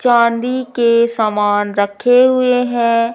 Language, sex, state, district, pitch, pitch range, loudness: Hindi, female, Madhya Pradesh, Umaria, 235 Hz, 220-250 Hz, -14 LUFS